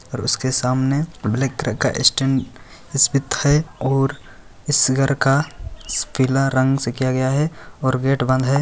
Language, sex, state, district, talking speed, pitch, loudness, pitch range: Hindi, male, Bihar, Bhagalpur, 160 wpm, 130 Hz, -19 LUFS, 125-140 Hz